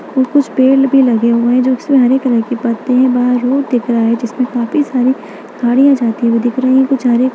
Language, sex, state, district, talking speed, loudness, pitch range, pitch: Hindi, female, Bihar, Bhagalpur, 255 wpm, -12 LUFS, 240-265 Hz, 250 Hz